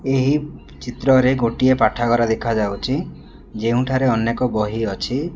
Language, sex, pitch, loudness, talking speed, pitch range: Odia, male, 125 Hz, -19 LUFS, 100 wpm, 115-130 Hz